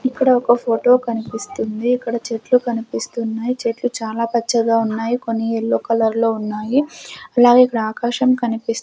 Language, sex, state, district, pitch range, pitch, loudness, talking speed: Telugu, female, Andhra Pradesh, Sri Satya Sai, 225-245 Hz, 235 Hz, -18 LUFS, 130 wpm